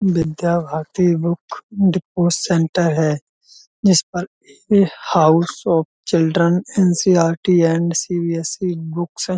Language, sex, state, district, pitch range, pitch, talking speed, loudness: Hindi, male, Uttar Pradesh, Budaun, 165-185 Hz, 170 Hz, 110 wpm, -18 LUFS